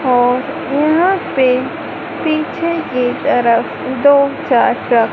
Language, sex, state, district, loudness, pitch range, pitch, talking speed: Hindi, female, Madhya Pradesh, Dhar, -15 LUFS, 250-310 Hz, 275 Hz, 95 wpm